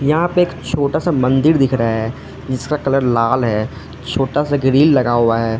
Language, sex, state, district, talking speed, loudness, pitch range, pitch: Hindi, male, Arunachal Pradesh, Lower Dibang Valley, 205 wpm, -16 LUFS, 115-145 Hz, 130 Hz